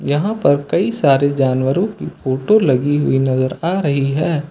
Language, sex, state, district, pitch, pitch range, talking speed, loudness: Hindi, male, Uttar Pradesh, Lucknow, 145 Hz, 135-170 Hz, 175 wpm, -16 LUFS